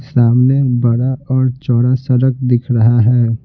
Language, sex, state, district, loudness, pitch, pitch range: Hindi, male, Bihar, Patna, -13 LUFS, 125 Hz, 120-130 Hz